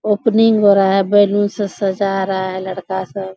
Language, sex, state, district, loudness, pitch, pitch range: Hindi, female, Bihar, Bhagalpur, -15 LUFS, 195 Hz, 190-205 Hz